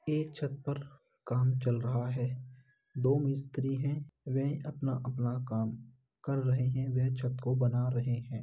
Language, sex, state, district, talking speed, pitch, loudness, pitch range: Hindi, male, Uttar Pradesh, Muzaffarnagar, 155 wpm, 130 Hz, -33 LUFS, 125-140 Hz